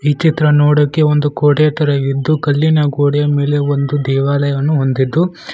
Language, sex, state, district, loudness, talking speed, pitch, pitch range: Kannada, male, Karnataka, Koppal, -14 LUFS, 130 wpm, 145 Hz, 140-150 Hz